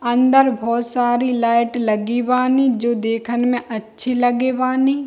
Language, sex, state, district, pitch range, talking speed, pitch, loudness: Hindi, female, Bihar, Darbhanga, 235-255 Hz, 140 wpm, 245 Hz, -18 LUFS